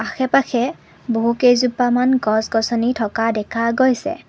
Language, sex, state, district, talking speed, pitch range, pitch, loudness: Assamese, female, Assam, Kamrup Metropolitan, 110 wpm, 225-250 Hz, 235 Hz, -18 LUFS